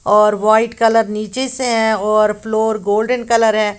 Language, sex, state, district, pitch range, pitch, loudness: Hindi, female, Uttar Pradesh, Lalitpur, 215-225 Hz, 220 Hz, -15 LUFS